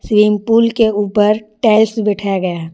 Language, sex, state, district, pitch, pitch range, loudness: Hindi, female, Jharkhand, Garhwa, 210 Hz, 205-220 Hz, -14 LUFS